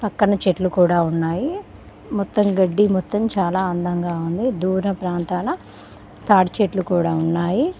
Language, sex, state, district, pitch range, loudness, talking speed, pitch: Telugu, female, Telangana, Mahabubabad, 175-205 Hz, -20 LUFS, 125 wpm, 185 Hz